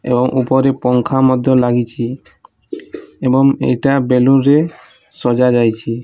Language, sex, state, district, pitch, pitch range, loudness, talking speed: Odia, male, Odisha, Nuapada, 130 Hz, 125-135 Hz, -14 LUFS, 100 wpm